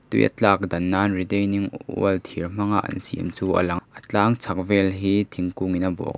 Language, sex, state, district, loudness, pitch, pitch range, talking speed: Mizo, male, Mizoram, Aizawl, -23 LUFS, 95 Hz, 90-100 Hz, 240 wpm